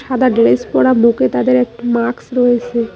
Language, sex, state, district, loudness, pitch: Bengali, female, West Bengal, Cooch Behar, -13 LUFS, 235 Hz